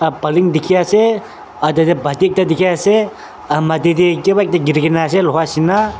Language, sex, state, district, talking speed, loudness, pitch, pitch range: Nagamese, male, Nagaland, Dimapur, 190 wpm, -14 LUFS, 170 Hz, 160-190 Hz